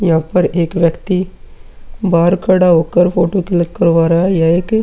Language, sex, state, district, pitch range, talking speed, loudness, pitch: Hindi, male, Uttar Pradesh, Muzaffarnagar, 170-185 Hz, 185 wpm, -13 LUFS, 175 Hz